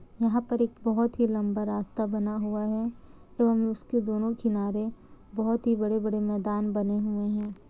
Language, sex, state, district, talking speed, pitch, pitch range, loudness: Hindi, female, Bihar, Kishanganj, 165 wpm, 215 Hz, 210-230 Hz, -28 LUFS